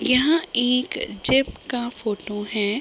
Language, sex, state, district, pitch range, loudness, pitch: Hindi, female, Uttar Pradesh, Deoria, 215-265 Hz, -22 LUFS, 245 Hz